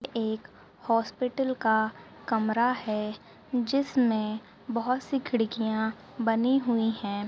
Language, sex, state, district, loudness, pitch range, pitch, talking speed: Hindi, female, Maharashtra, Nagpur, -28 LUFS, 220-250 Hz, 230 Hz, 115 wpm